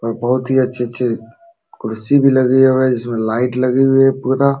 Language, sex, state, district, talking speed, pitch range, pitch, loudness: Hindi, male, Uttar Pradesh, Jalaun, 210 wpm, 120-135 Hz, 130 Hz, -15 LUFS